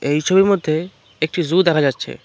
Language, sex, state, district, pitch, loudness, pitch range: Bengali, male, West Bengal, Cooch Behar, 155 Hz, -17 LUFS, 145-185 Hz